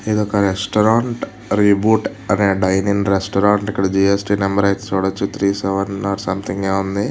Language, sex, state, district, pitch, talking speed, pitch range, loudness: Telugu, male, Andhra Pradesh, Visakhapatnam, 100 Hz, 175 wpm, 95-100 Hz, -17 LUFS